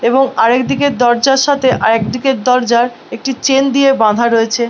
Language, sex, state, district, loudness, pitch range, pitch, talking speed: Bengali, female, West Bengal, Malda, -12 LUFS, 235-270 Hz, 250 Hz, 155 wpm